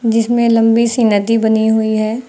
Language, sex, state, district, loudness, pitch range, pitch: Hindi, female, Uttar Pradesh, Lucknow, -13 LUFS, 220-235 Hz, 225 Hz